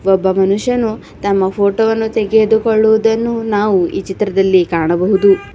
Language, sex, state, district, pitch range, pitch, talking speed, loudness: Kannada, female, Karnataka, Bidar, 190-220 Hz, 205 Hz, 110 wpm, -14 LUFS